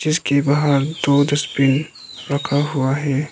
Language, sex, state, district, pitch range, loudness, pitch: Hindi, male, Arunachal Pradesh, Lower Dibang Valley, 135-150 Hz, -18 LUFS, 140 Hz